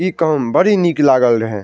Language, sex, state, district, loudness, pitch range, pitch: Maithili, male, Bihar, Madhepura, -14 LUFS, 120-170 Hz, 145 Hz